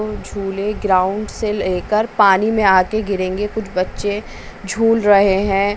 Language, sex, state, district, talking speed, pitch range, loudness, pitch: Hindi, female, West Bengal, Dakshin Dinajpur, 135 wpm, 195-215 Hz, -17 LUFS, 205 Hz